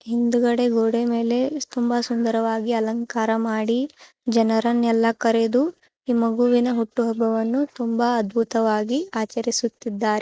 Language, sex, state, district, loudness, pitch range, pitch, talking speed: Kannada, female, Karnataka, Chamarajanagar, -22 LUFS, 225-240 Hz, 235 Hz, 100 wpm